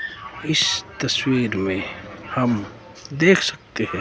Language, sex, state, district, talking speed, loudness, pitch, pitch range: Hindi, male, Himachal Pradesh, Shimla, 105 wpm, -21 LUFS, 125 Hz, 105-160 Hz